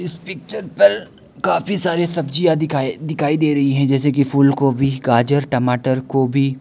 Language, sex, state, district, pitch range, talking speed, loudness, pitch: Hindi, male, Arunachal Pradesh, Lower Dibang Valley, 135-160 Hz, 155 wpm, -17 LUFS, 140 Hz